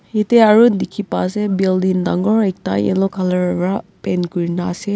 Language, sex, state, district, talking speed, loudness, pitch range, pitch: Nagamese, female, Nagaland, Kohima, 170 wpm, -16 LUFS, 180-210 Hz, 190 Hz